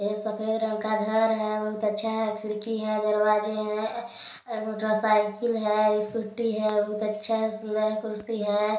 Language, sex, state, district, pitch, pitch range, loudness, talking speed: Hindi, male, Chhattisgarh, Balrampur, 215 Hz, 215-220 Hz, -27 LUFS, 155 wpm